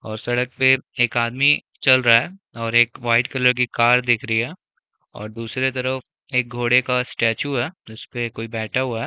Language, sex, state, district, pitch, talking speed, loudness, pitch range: Hindi, male, Chhattisgarh, Bilaspur, 120 Hz, 190 wpm, -20 LUFS, 115-130 Hz